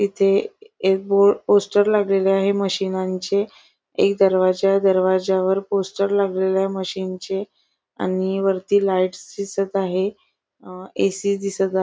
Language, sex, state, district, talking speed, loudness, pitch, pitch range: Marathi, female, Maharashtra, Nagpur, 125 wpm, -20 LUFS, 195 Hz, 190-200 Hz